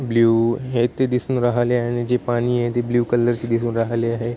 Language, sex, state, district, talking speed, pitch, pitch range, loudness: Marathi, male, Maharashtra, Chandrapur, 220 wpm, 120 Hz, 115-120 Hz, -20 LUFS